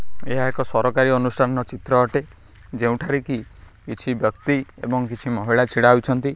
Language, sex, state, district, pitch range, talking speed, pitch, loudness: Odia, male, Odisha, Khordha, 115-130 Hz, 140 wpm, 125 Hz, -21 LUFS